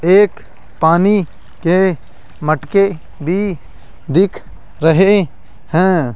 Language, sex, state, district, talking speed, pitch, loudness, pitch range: Hindi, male, Rajasthan, Jaipur, 80 wpm, 180 Hz, -15 LUFS, 160-195 Hz